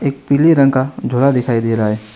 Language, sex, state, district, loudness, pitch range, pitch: Hindi, male, West Bengal, Alipurduar, -14 LUFS, 115-140 Hz, 130 Hz